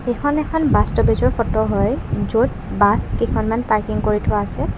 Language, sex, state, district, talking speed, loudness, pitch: Assamese, female, Assam, Kamrup Metropolitan, 165 wpm, -19 LUFS, 215 Hz